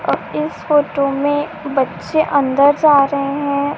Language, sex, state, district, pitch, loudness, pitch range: Hindi, female, Uttar Pradesh, Ghazipur, 285 Hz, -16 LUFS, 275-295 Hz